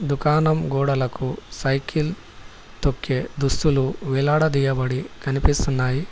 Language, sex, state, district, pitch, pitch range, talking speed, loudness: Telugu, male, Telangana, Hyderabad, 135 Hz, 130-150 Hz, 70 wpm, -22 LUFS